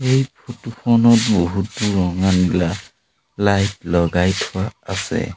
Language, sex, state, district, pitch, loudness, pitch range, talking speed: Assamese, male, Assam, Sonitpur, 100 Hz, -18 LUFS, 90-115 Hz, 110 wpm